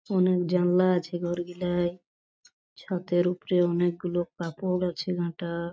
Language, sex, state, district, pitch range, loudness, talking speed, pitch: Bengali, male, West Bengal, Paschim Medinipur, 175-180 Hz, -27 LUFS, 115 wpm, 180 Hz